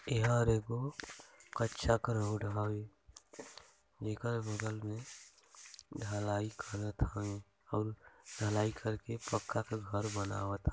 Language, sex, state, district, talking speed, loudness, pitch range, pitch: Hindi, male, Chhattisgarh, Balrampur, 105 wpm, -38 LUFS, 100-115 Hz, 105 Hz